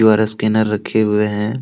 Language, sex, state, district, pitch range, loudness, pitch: Hindi, male, Jharkhand, Deoghar, 105-110 Hz, -16 LUFS, 110 Hz